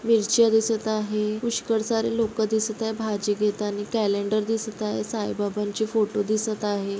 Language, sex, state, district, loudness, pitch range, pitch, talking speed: Marathi, female, Maharashtra, Dhule, -25 LUFS, 210-225 Hz, 215 Hz, 145 wpm